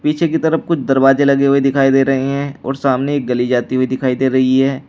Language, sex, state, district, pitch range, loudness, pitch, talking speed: Hindi, male, Uttar Pradesh, Shamli, 130-140 Hz, -15 LUFS, 135 Hz, 245 wpm